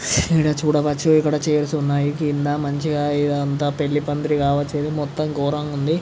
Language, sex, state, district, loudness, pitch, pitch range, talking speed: Telugu, male, Andhra Pradesh, Visakhapatnam, -20 LUFS, 145 Hz, 145-150 Hz, 140 wpm